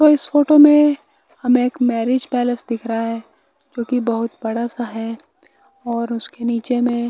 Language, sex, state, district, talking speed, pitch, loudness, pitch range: Hindi, male, Bihar, West Champaran, 170 wpm, 245 Hz, -18 LUFS, 235-270 Hz